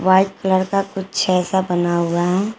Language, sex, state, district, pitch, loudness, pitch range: Hindi, female, Jharkhand, Garhwa, 185 Hz, -18 LUFS, 180-195 Hz